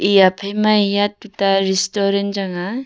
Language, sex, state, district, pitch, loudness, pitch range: Wancho, female, Arunachal Pradesh, Longding, 200 Hz, -17 LUFS, 195-205 Hz